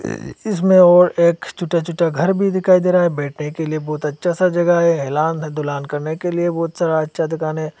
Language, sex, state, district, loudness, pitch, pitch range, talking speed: Hindi, male, Assam, Hailakandi, -17 LUFS, 170 Hz, 155-175 Hz, 225 wpm